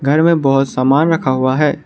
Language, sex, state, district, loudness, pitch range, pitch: Hindi, male, Arunachal Pradesh, Lower Dibang Valley, -14 LUFS, 130-155 Hz, 140 Hz